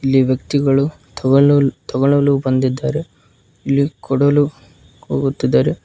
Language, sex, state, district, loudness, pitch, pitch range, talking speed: Kannada, male, Karnataka, Koppal, -16 LUFS, 135 Hz, 130-140 Hz, 80 wpm